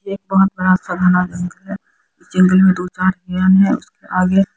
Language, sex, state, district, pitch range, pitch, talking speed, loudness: Hindi, female, Haryana, Jhajjar, 180-195 Hz, 185 Hz, 170 wpm, -15 LUFS